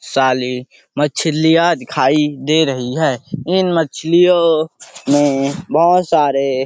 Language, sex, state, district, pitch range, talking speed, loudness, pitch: Hindi, male, Chhattisgarh, Sarguja, 135-165 Hz, 100 wpm, -15 LUFS, 150 Hz